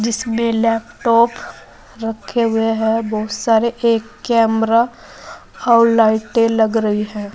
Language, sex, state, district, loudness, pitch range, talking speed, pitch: Hindi, female, Uttar Pradesh, Saharanpur, -16 LUFS, 220-230 Hz, 115 wpm, 225 Hz